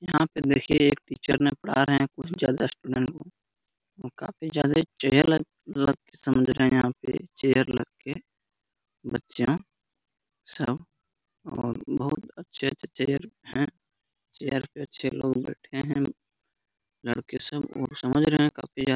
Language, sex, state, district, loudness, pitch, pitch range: Hindi, male, Bihar, Darbhanga, -27 LUFS, 135 Hz, 130-150 Hz